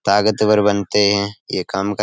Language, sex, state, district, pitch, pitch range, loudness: Hindi, male, Uttar Pradesh, Etah, 105 Hz, 100-105 Hz, -17 LUFS